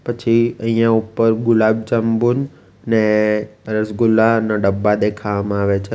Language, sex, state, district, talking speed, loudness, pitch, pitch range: Gujarati, male, Gujarat, Valsad, 100 wpm, -17 LUFS, 110 Hz, 105-115 Hz